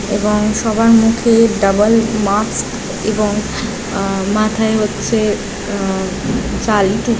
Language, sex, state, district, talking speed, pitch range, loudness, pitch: Bengali, female, West Bengal, Jhargram, 100 wpm, 205-225 Hz, -15 LUFS, 215 Hz